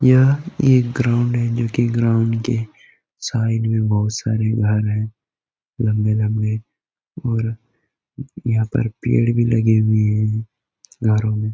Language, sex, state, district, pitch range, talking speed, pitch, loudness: Hindi, male, Jharkhand, Jamtara, 110-120 Hz, 130 wpm, 115 Hz, -19 LUFS